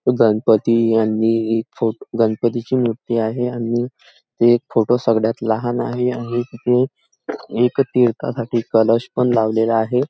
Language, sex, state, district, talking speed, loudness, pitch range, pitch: Marathi, male, Maharashtra, Nagpur, 130 wpm, -18 LUFS, 115-125 Hz, 115 Hz